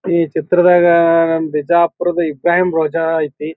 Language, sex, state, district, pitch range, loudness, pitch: Kannada, male, Karnataka, Bijapur, 160-175 Hz, -14 LUFS, 165 Hz